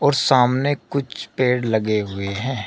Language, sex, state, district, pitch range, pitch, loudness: Hindi, male, Uttar Pradesh, Shamli, 110-135 Hz, 125 Hz, -20 LUFS